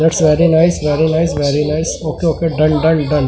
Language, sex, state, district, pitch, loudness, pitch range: Hindi, male, Delhi, New Delhi, 160 Hz, -14 LUFS, 150-165 Hz